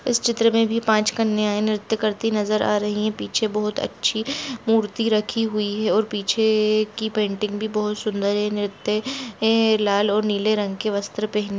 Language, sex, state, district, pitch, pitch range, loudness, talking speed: Hindi, female, Jharkhand, Jamtara, 215 Hz, 210-220 Hz, -22 LUFS, 190 wpm